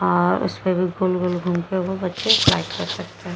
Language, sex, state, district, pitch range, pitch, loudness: Hindi, female, Uttar Pradesh, Jyotiba Phule Nagar, 175-185 Hz, 180 Hz, -21 LUFS